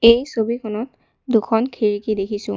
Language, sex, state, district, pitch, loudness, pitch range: Assamese, female, Assam, Kamrup Metropolitan, 225 Hz, -20 LUFS, 210-235 Hz